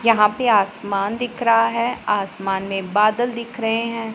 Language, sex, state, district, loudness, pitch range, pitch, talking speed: Hindi, female, Punjab, Pathankot, -20 LUFS, 200-235 Hz, 225 Hz, 175 wpm